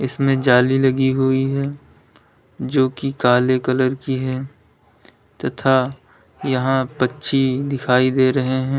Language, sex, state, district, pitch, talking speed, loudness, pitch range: Hindi, male, Uttar Pradesh, Lalitpur, 130 Hz, 125 wpm, -19 LUFS, 130-135 Hz